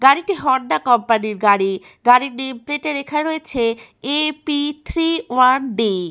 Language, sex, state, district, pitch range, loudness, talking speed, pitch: Bengali, female, West Bengal, Malda, 230-300 Hz, -18 LUFS, 145 wpm, 265 Hz